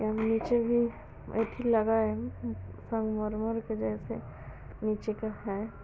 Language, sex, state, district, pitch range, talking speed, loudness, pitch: Hindi, female, Bihar, East Champaran, 210-225 Hz, 125 wpm, -31 LUFS, 220 Hz